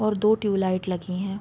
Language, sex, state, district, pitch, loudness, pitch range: Hindi, female, Bihar, Vaishali, 195 Hz, -24 LUFS, 185-210 Hz